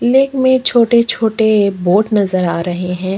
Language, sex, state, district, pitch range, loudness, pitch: Hindi, female, Chhattisgarh, Kabirdham, 185-235 Hz, -13 LUFS, 215 Hz